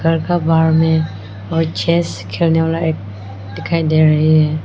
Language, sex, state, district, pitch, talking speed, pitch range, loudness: Hindi, female, Arunachal Pradesh, Longding, 160 Hz, 170 wpm, 150-165 Hz, -15 LUFS